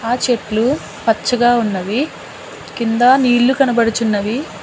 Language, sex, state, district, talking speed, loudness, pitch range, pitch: Telugu, female, Telangana, Hyderabad, 90 wpm, -15 LUFS, 225-250 Hz, 235 Hz